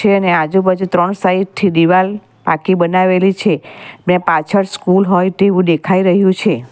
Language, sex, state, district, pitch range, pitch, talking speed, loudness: Gujarati, female, Gujarat, Valsad, 180-195 Hz, 185 Hz, 150 wpm, -13 LUFS